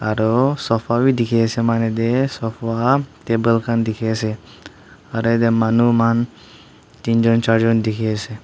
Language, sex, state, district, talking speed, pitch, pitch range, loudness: Nagamese, male, Nagaland, Dimapur, 100 wpm, 115 Hz, 110-115 Hz, -18 LUFS